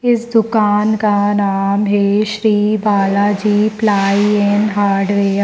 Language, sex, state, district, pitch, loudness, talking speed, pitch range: Hindi, female, Madhya Pradesh, Dhar, 205 Hz, -14 LUFS, 120 wpm, 200-215 Hz